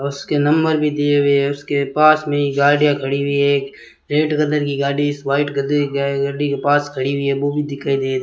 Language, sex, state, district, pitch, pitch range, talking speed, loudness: Hindi, male, Rajasthan, Bikaner, 140 Hz, 140-145 Hz, 240 wpm, -17 LUFS